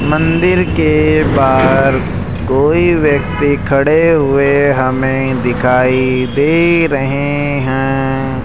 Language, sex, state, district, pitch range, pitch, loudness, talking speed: Hindi, male, Rajasthan, Jaipur, 130-155 Hz, 140 Hz, -12 LUFS, 85 wpm